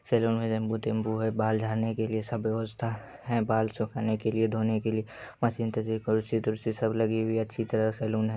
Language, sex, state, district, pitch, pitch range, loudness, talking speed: Hindi, male, Bihar, Saharsa, 110 Hz, 110-115 Hz, -29 LUFS, 220 wpm